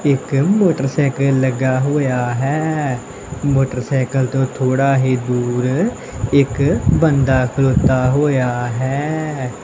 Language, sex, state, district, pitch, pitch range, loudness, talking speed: Punjabi, male, Punjab, Kapurthala, 135 Hz, 130-140 Hz, -17 LUFS, 95 wpm